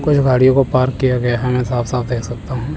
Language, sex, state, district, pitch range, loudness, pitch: Hindi, male, Chandigarh, Chandigarh, 125-130 Hz, -16 LUFS, 125 Hz